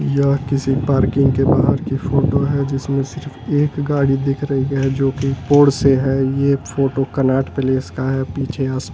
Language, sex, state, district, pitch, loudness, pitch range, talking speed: Hindi, male, Delhi, New Delhi, 135 Hz, -17 LUFS, 135-140 Hz, 195 wpm